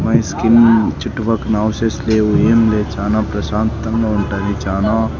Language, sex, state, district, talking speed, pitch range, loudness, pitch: Telugu, male, Andhra Pradesh, Sri Satya Sai, 125 wpm, 105-115 Hz, -15 LUFS, 110 Hz